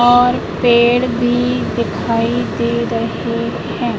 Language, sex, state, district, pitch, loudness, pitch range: Hindi, female, Madhya Pradesh, Katni, 240 Hz, -16 LUFS, 235-245 Hz